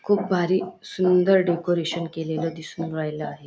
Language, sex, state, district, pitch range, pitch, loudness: Marathi, female, Maharashtra, Dhule, 160-185 Hz, 170 Hz, -23 LUFS